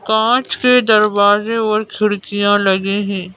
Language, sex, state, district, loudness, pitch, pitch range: Hindi, female, Madhya Pradesh, Bhopal, -14 LUFS, 210 Hz, 205-220 Hz